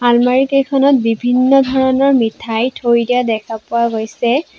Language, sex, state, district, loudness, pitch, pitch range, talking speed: Assamese, female, Assam, Sonitpur, -14 LUFS, 245 Hz, 235-270 Hz, 130 wpm